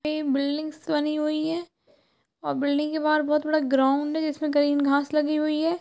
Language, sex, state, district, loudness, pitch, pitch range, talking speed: Hindi, female, Jharkhand, Sahebganj, -24 LUFS, 300 Hz, 290-310 Hz, 195 wpm